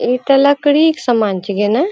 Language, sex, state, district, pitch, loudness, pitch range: Angika, female, Bihar, Purnia, 265 Hz, -13 LUFS, 215-290 Hz